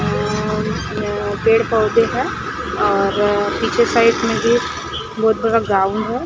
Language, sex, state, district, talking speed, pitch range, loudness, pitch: Hindi, female, Maharashtra, Gondia, 135 wpm, 210-240 Hz, -17 LUFS, 225 Hz